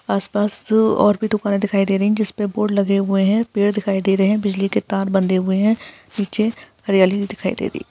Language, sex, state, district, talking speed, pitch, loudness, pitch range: Hindi, female, Bihar, Darbhanga, 235 wpm, 200 Hz, -18 LUFS, 195-215 Hz